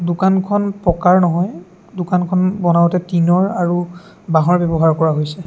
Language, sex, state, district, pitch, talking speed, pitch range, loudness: Assamese, male, Assam, Sonitpur, 175 Hz, 130 wpm, 170-185 Hz, -16 LUFS